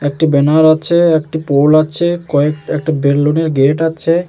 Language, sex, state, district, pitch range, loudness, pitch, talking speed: Bengali, male, West Bengal, Jalpaiguri, 145-165 Hz, -12 LUFS, 155 Hz, 140 wpm